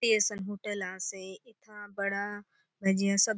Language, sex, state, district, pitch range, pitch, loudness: Halbi, female, Chhattisgarh, Bastar, 195-210 Hz, 205 Hz, -31 LUFS